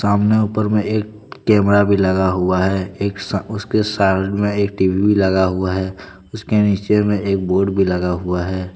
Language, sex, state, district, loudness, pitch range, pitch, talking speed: Hindi, male, Jharkhand, Deoghar, -17 LUFS, 95-105 Hz, 100 Hz, 180 wpm